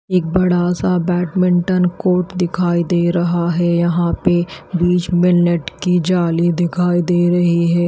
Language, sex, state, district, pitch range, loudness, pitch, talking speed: Hindi, female, Haryana, Rohtak, 175-180 Hz, -16 LUFS, 175 Hz, 150 wpm